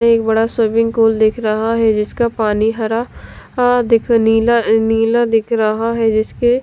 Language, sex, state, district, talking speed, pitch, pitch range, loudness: Hindi, female, Delhi, New Delhi, 165 wpm, 225 Hz, 220-235 Hz, -15 LUFS